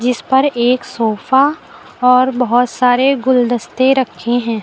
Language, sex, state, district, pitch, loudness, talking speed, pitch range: Hindi, female, Uttar Pradesh, Lucknow, 250 Hz, -14 LUFS, 130 wpm, 240-260 Hz